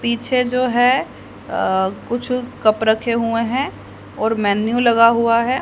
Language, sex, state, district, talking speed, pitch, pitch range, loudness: Hindi, female, Haryana, Charkhi Dadri, 150 wpm, 235 Hz, 225-250 Hz, -18 LUFS